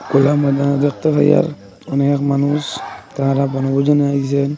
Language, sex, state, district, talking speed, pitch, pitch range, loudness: Bengali, male, Assam, Hailakandi, 120 wpm, 140 Hz, 140-145 Hz, -16 LUFS